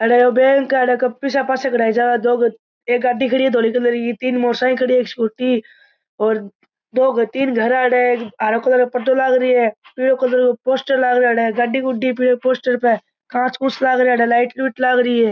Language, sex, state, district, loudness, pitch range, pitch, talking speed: Marwari, male, Rajasthan, Churu, -17 LUFS, 240-255 Hz, 250 Hz, 210 wpm